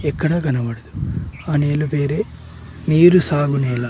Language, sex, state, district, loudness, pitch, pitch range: Telugu, male, Andhra Pradesh, Sri Satya Sai, -18 LUFS, 145 Hz, 135-155 Hz